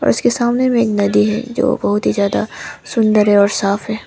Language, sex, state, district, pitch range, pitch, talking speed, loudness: Hindi, female, Arunachal Pradesh, Papum Pare, 200-235 Hz, 210 Hz, 220 wpm, -15 LUFS